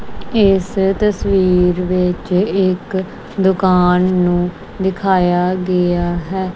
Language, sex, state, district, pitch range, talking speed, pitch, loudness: Punjabi, female, Punjab, Kapurthala, 180-190 Hz, 80 wpm, 185 Hz, -15 LUFS